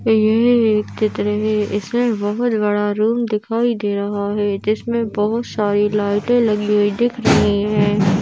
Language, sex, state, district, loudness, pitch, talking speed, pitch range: Hindi, female, Madhya Pradesh, Bhopal, -18 LUFS, 210 Hz, 155 wpm, 205-230 Hz